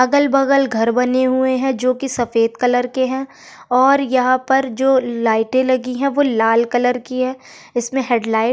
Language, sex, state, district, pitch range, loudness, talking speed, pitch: Hindi, female, Uttarakhand, Tehri Garhwal, 240-265 Hz, -17 LUFS, 190 wpm, 255 Hz